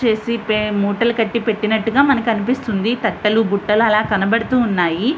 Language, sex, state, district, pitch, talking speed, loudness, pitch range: Telugu, female, Andhra Pradesh, Visakhapatnam, 225 Hz, 125 wpm, -17 LUFS, 210-235 Hz